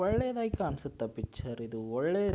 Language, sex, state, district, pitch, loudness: Kannada, male, Karnataka, Belgaum, 135 Hz, -34 LUFS